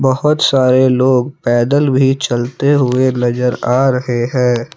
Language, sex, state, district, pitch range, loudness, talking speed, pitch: Hindi, male, Jharkhand, Palamu, 125-135 Hz, -13 LUFS, 140 wpm, 130 Hz